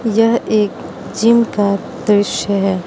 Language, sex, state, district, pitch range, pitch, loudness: Hindi, female, Mizoram, Aizawl, 200-225 Hz, 210 Hz, -15 LUFS